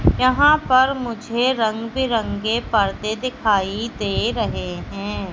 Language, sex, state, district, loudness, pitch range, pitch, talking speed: Hindi, female, Madhya Pradesh, Katni, -20 LUFS, 205-255 Hz, 225 Hz, 110 wpm